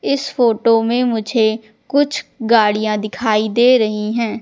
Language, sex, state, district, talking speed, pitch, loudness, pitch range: Hindi, female, Madhya Pradesh, Katni, 135 wpm, 225 Hz, -16 LUFS, 215-245 Hz